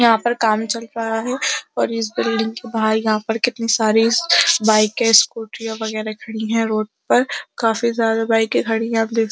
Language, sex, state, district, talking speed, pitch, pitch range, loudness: Hindi, female, Uttar Pradesh, Jyotiba Phule Nagar, 200 wpm, 225 Hz, 220-230 Hz, -18 LUFS